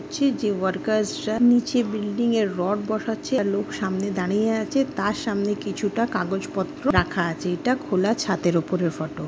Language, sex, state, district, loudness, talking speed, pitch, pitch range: Bengali, female, West Bengal, Malda, -24 LUFS, 160 wpm, 210 Hz, 190-230 Hz